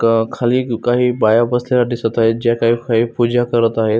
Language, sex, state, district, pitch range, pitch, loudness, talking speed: Marathi, male, Maharashtra, Solapur, 115-120 Hz, 115 Hz, -16 LUFS, 180 wpm